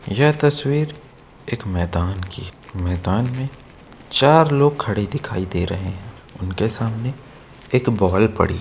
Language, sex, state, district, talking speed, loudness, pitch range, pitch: Hindi, male, Uttar Pradesh, Etah, 145 wpm, -20 LUFS, 95-140 Hz, 115 Hz